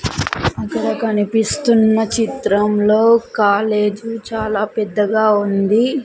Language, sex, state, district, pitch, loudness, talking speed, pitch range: Telugu, female, Andhra Pradesh, Sri Satya Sai, 215 Hz, -16 LUFS, 70 wpm, 210-225 Hz